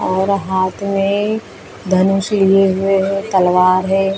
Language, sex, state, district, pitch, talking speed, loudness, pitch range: Hindi, female, Maharashtra, Mumbai Suburban, 195 Hz, 145 wpm, -15 LUFS, 185-195 Hz